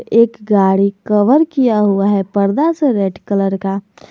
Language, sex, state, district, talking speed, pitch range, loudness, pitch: Hindi, male, Jharkhand, Garhwa, 160 wpm, 195-230 Hz, -14 LUFS, 205 Hz